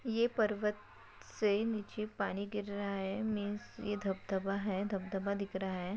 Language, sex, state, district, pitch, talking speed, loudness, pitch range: Hindi, female, Maharashtra, Nagpur, 205 Hz, 180 wpm, -37 LUFS, 195-210 Hz